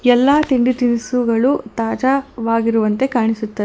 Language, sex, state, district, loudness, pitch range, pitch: Kannada, female, Karnataka, Bangalore, -17 LUFS, 225-260 Hz, 245 Hz